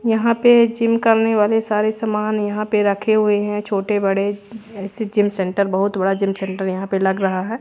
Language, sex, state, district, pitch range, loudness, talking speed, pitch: Hindi, female, Haryana, Rohtak, 195-220 Hz, -18 LUFS, 205 wpm, 210 Hz